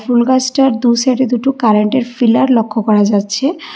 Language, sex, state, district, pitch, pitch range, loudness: Bengali, female, Karnataka, Bangalore, 245 Hz, 225-260 Hz, -13 LUFS